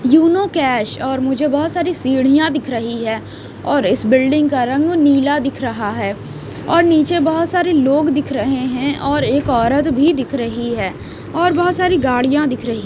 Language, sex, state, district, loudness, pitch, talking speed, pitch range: Hindi, female, Himachal Pradesh, Shimla, -16 LUFS, 285 Hz, 190 wpm, 260-315 Hz